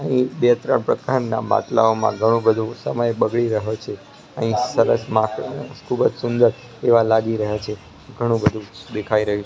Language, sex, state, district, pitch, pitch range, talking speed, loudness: Gujarati, male, Gujarat, Gandhinagar, 110 Hz, 110-120 Hz, 160 wpm, -20 LUFS